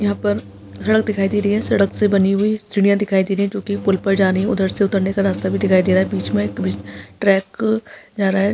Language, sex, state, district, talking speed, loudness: Hindi, female, Chhattisgarh, Kabirdham, 260 wpm, -18 LUFS